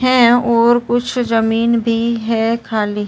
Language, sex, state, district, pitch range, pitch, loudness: Hindi, female, Uttar Pradesh, Ghazipur, 225-240 Hz, 230 Hz, -15 LUFS